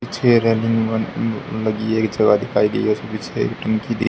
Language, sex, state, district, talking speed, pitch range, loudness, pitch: Hindi, male, Haryana, Charkhi Dadri, 175 wpm, 110-115 Hz, -19 LUFS, 115 Hz